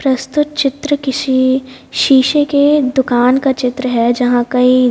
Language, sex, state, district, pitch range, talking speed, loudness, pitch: Hindi, female, Haryana, Jhajjar, 250-280 Hz, 135 wpm, -13 LUFS, 260 Hz